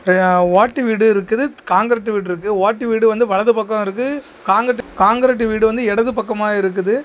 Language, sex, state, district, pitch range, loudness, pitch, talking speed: Tamil, male, Tamil Nadu, Kanyakumari, 200-240 Hz, -16 LUFS, 220 Hz, 170 wpm